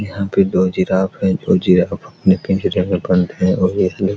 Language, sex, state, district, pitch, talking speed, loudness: Hindi, male, Bihar, Araria, 95 Hz, 230 wpm, -16 LUFS